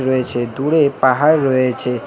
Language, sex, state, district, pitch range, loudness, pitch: Bengali, male, West Bengal, Alipurduar, 125-140 Hz, -16 LUFS, 130 Hz